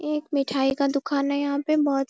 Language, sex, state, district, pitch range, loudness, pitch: Hindi, female, Bihar, Darbhanga, 275-295 Hz, -24 LUFS, 280 Hz